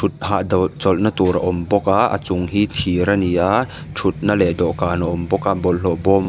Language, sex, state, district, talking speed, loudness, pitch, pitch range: Mizo, male, Mizoram, Aizawl, 210 wpm, -18 LUFS, 95 Hz, 90-100 Hz